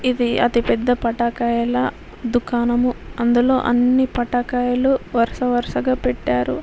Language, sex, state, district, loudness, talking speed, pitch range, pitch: Telugu, female, Telangana, Karimnagar, -19 LUFS, 90 wpm, 235-245 Hz, 240 Hz